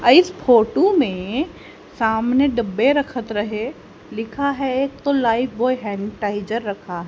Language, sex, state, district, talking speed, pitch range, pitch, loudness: Hindi, female, Haryana, Jhajjar, 145 wpm, 215-275 Hz, 235 Hz, -20 LUFS